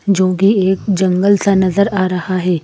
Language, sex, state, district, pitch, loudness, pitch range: Hindi, female, Madhya Pradesh, Bhopal, 190 Hz, -14 LUFS, 185-200 Hz